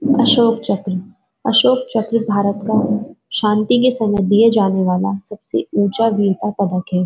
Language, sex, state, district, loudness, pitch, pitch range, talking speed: Hindi, female, Uttarakhand, Uttarkashi, -16 LUFS, 210 Hz, 200-230 Hz, 145 wpm